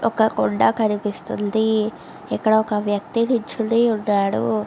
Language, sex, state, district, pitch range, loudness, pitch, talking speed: Telugu, female, Andhra Pradesh, Visakhapatnam, 205-225 Hz, -20 LUFS, 220 Hz, 105 wpm